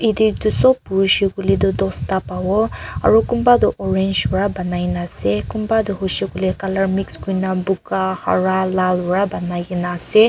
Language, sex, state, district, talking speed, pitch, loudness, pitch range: Nagamese, female, Nagaland, Kohima, 185 wpm, 190 Hz, -18 LUFS, 175-195 Hz